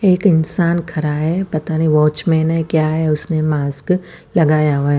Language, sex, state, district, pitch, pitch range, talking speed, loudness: Hindi, female, Chandigarh, Chandigarh, 160 Hz, 155-170 Hz, 170 wpm, -16 LUFS